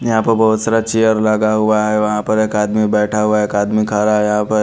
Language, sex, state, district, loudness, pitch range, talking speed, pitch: Hindi, male, Haryana, Charkhi Dadri, -15 LUFS, 105-110 Hz, 270 wpm, 110 Hz